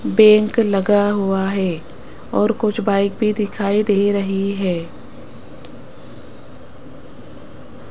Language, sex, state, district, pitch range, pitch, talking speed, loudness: Hindi, female, Rajasthan, Jaipur, 195-210 Hz, 200 Hz, 90 wpm, -17 LUFS